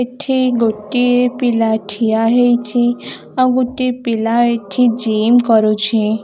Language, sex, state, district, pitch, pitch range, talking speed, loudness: Odia, female, Odisha, Khordha, 240 Hz, 220-245 Hz, 115 wpm, -15 LUFS